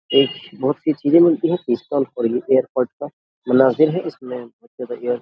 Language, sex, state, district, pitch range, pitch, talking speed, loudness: Hindi, male, Uttar Pradesh, Jyotiba Phule Nagar, 125-155 Hz, 130 Hz, 90 wpm, -19 LUFS